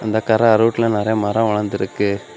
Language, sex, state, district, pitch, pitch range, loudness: Tamil, male, Tamil Nadu, Kanyakumari, 110 Hz, 105-110 Hz, -17 LUFS